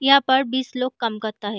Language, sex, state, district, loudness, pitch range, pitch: Hindi, female, Bihar, Gaya, -21 LUFS, 220-265 Hz, 255 Hz